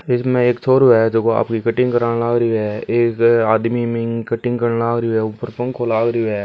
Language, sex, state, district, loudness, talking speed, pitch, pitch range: Hindi, male, Rajasthan, Churu, -17 LUFS, 215 wpm, 115 Hz, 115-120 Hz